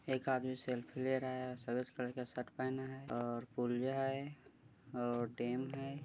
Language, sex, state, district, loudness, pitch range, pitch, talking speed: Hindi, male, Chhattisgarh, Bilaspur, -41 LUFS, 125-130 Hz, 130 Hz, 180 wpm